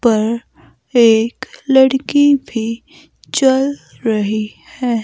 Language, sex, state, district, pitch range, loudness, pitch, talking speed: Hindi, female, Himachal Pradesh, Shimla, 225-270 Hz, -15 LUFS, 245 Hz, 85 wpm